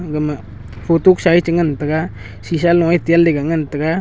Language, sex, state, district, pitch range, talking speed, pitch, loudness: Wancho, male, Arunachal Pradesh, Longding, 145-170 Hz, 150 wpm, 160 Hz, -15 LUFS